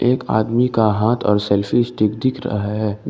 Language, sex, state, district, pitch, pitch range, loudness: Hindi, male, Jharkhand, Ranchi, 110 Hz, 105-120 Hz, -18 LUFS